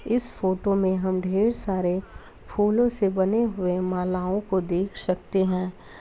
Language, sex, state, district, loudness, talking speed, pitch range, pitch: Hindi, female, Uttar Pradesh, Deoria, -25 LUFS, 150 wpm, 185-205 Hz, 190 Hz